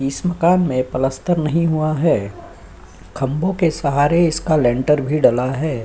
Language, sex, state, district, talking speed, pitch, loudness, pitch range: Hindi, female, Uttar Pradesh, Jyotiba Phule Nagar, 155 wpm, 150 Hz, -18 LUFS, 130-165 Hz